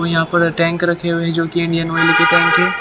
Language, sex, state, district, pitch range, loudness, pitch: Hindi, male, Haryana, Jhajjar, 165-175 Hz, -15 LUFS, 170 Hz